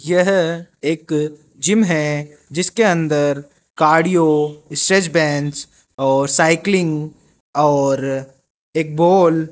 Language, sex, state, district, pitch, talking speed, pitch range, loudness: Hindi, male, Rajasthan, Jaipur, 155 Hz, 95 wpm, 145-170 Hz, -17 LUFS